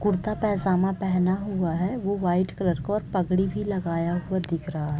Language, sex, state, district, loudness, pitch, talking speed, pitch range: Hindi, female, Chhattisgarh, Raigarh, -26 LUFS, 185 Hz, 215 wpm, 175-200 Hz